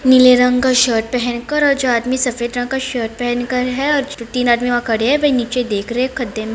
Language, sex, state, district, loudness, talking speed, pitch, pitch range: Hindi, female, Bihar, Saran, -16 LUFS, 265 wpm, 250 Hz, 240-260 Hz